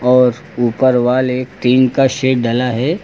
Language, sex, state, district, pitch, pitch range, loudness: Hindi, male, Uttar Pradesh, Lucknow, 125 Hz, 125-130 Hz, -14 LUFS